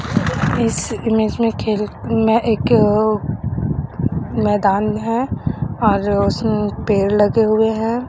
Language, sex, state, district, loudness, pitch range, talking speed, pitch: Hindi, female, Chhattisgarh, Raipur, -17 LUFS, 210-225 Hz, 105 wpm, 215 Hz